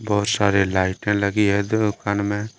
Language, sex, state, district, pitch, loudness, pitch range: Hindi, male, Jharkhand, Deoghar, 100 Hz, -20 LUFS, 100-105 Hz